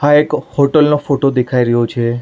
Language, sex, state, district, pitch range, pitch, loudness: Gujarati, male, Maharashtra, Mumbai Suburban, 120-150 Hz, 140 Hz, -14 LUFS